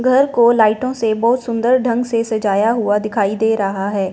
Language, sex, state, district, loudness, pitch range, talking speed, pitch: Hindi, female, Punjab, Fazilka, -16 LUFS, 210-240 Hz, 205 wpm, 225 Hz